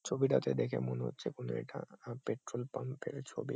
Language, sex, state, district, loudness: Bengali, male, West Bengal, Kolkata, -38 LUFS